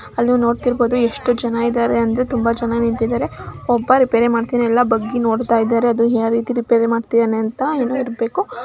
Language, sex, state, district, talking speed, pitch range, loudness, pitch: Kannada, male, Karnataka, Mysore, 145 wpm, 230-245 Hz, -17 LUFS, 235 Hz